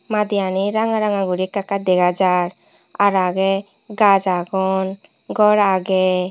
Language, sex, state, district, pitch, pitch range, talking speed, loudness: Chakma, female, Tripura, Unakoti, 195 Hz, 185-205 Hz, 125 wpm, -18 LUFS